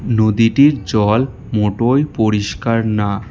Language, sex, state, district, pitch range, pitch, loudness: Bengali, male, West Bengal, Alipurduar, 105-125 Hz, 110 Hz, -15 LUFS